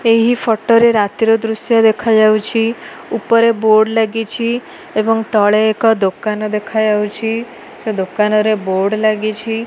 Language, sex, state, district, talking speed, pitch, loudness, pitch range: Odia, female, Odisha, Malkangiri, 120 wpm, 220 Hz, -14 LUFS, 215-230 Hz